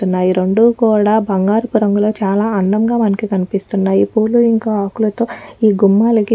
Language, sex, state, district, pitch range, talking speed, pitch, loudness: Telugu, female, Telangana, Nalgonda, 195-225 Hz, 130 wpm, 215 Hz, -14 LUFS